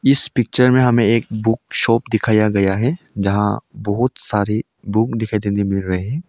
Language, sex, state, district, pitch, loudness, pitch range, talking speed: Hindi, male, Arunachal Pradesh, Longding, 110 Hz, -18 LUFS, 105-125 Hz, 180 wpm